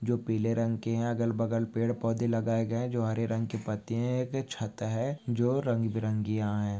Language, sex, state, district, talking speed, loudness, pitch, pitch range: Hindi, male, Maharashtra, Solapur, 210 wpm, -31 LUFS, 115 Hz, 110-120 Hz